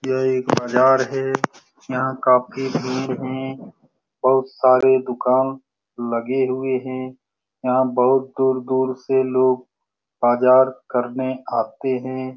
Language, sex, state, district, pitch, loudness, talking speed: Hindi, male, Bihar, Lakhisarai, 130 Hz, -20 LUFS, 110 wpm